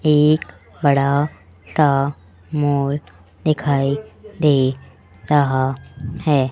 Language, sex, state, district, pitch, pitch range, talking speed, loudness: Hindi, male, Rajasthan, Jaipur, 140 Hz, 130-150 Hz, 75 wpm, -19 LUFS